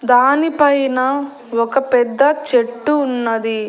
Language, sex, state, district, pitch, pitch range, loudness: Telugu, female, Andhra Pradesh, Annamaya, 255 Hz, 240-280 Hz, -16 LUFS